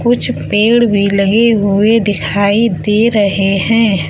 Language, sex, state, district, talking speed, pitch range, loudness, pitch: Hindi, female, Uttar Pradesh, Lalitpur, 130 wpm, 200-230 Hz, -11 LUFS, 210 Hz